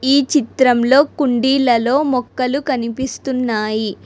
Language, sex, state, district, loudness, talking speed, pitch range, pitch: Telugu, female, Telangana, Hyderabad, -16 LUFS, 75 wpm, 240-275 Hz, 260 Hz